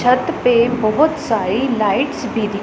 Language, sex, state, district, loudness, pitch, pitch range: Hindi, female, Punjab, Pathankot, -17 LUFS, 245 Hz, 225-265 Hz